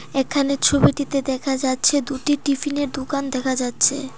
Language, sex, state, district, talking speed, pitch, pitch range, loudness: Bengali, female, Tripura, Dhalai, 145 wpm, 275 Hz, 265-285 Hz, -20 LUFS